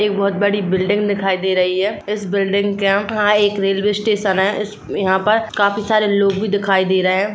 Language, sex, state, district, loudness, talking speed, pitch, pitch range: Hindi, female, Chhattisgarh, Rajnandgaon, -17 LUFS, 210 wpm, 200 Hz, 195-210 Hz